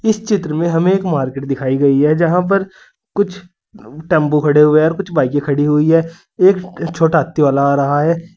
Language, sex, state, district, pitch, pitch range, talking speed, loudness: Hindi, male, Uttar Pradesh, Saharanpur, 165 Hz, 145-185 Hz, 210 wpm, -14 LUFS